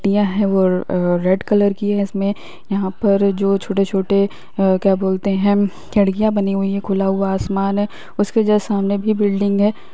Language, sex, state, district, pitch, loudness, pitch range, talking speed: Hindi, female, Bihar, Muzaffarpur, 200 Hz, -18 LUFS, 195-205 Hz, 185 wpm